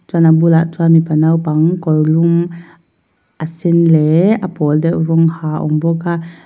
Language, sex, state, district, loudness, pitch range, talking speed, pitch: Mizo, female, Mizoram, Aizawl, -13 LUFS, 155-170 Hz, 185 wpm, 165 Hz